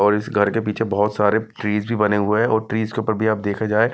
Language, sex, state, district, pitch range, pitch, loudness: Hindi, male, Himachal Pradesh, Shimla, 105-110 Hz, 110 Hz, -20 LUFS